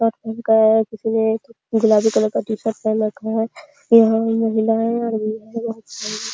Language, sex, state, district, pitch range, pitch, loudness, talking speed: Hindi, female, Bihar, Araria, 220-225 Hz, 225 Hz, -19 LUFS, 130 wpm